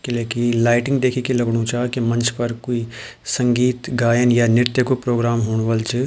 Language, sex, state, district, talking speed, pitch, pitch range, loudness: Garhwali, male, Uttarakhand, Tehri Garhwal, 180 wpm, 120 Hz, 115-125 Hz, -19 LUFS